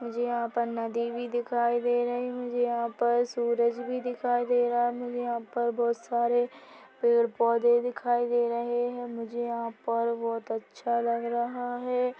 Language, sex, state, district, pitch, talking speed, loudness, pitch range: Hindi, male, Chhattisgarh, Korba, 240 Hz, 175 wpm, -28 LUFS, 235-245 Hz